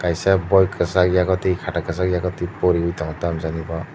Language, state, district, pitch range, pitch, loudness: Kokborok, Tripura, Dhalai, 85-90 Hz, 90 Hz, -20 LUFS